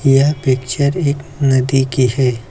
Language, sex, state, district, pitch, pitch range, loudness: Hindi, male, Uttar Pradesh, Lucknow, 135 Hz, 130-140 Hz, -15 LUFS